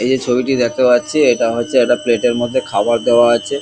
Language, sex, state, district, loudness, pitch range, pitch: Bengali, male, West Bengal, Kolkata, -14 LUFS, 120-130 Hz, 120 Hz